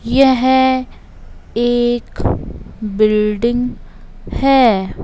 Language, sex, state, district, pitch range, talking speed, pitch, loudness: Hindi, male, Madhya Pradesh, Bhopal, 215-260 Hz, 50 wpm, 240 Hz, -15 LUFS